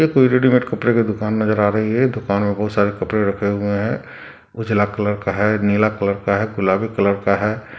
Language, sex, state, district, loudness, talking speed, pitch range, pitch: Hindi, male, Bihar, Sitamarhi, -18 LUFS, 240 wpm, 100-110 Hz, 105 Hz